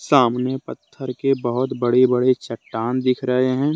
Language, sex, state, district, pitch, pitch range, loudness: Hindi, male, Jharkhand, Deoghar, 130 Hz, 125-130 Hz, -20 LUFS